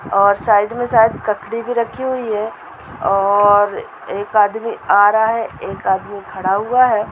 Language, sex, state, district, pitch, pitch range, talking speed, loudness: Hindi, female, Bihar, Purnia, 210 Hz, 200-230 Hz, 170 wpm, -16 LUFS